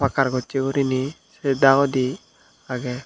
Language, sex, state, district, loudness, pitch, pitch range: Chakma, male, Tripura, Dhalai, -22 LUFS, 135 Hz, 130-140 Hz